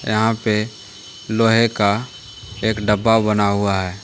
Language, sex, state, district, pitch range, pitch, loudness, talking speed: Hindi, male, Jharkhand, Deoghar, 105-115 Hz, 110 Hz, -18 LUFS, 135 wpm